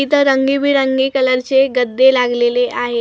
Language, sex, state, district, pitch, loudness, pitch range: Marathi, female, Maharashtra, Gondia, 265 Hz, -14 LUFS, 245-275 Hz